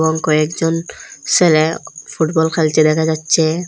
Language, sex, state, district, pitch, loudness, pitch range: Bengali, female, Assam, Hailakandi, 160 Hz, -15 LUFS, 155-165 Hz